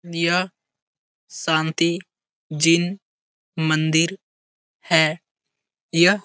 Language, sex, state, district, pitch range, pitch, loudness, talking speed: Hindi, male, Bihar, Jahanabad, 160-180 Hz, 170 Hz, -20 LUFS, 65 wpm